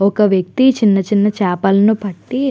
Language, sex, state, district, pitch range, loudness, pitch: Telugu, female, Andhra Pradesh, Chittoor, 195-215 Hz, -14 LUFS, 205 Hz